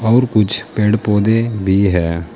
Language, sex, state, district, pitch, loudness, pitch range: Hindi, male, Uttar Pradesh, Saharanpur, 105 Hz, -15 LUFS, 95-115 Hz